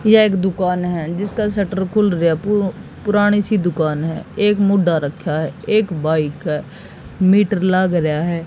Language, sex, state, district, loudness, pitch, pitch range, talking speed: Hindi, female, Haryana, Jhajjar, -17 LUFS, 185 Hz, 165-205 Hz, 175 wpm